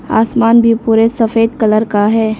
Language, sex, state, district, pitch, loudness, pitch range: Hindi, female, Arunachal Pradesh, Lower Dibang Valley, 225 Hz, -11 LUFS, 220-230 Hz